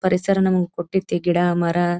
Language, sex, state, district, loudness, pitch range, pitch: Kannada, female, Karnataka, Dharwad, -20 LUFS, 175-190 Hz, 175 Hz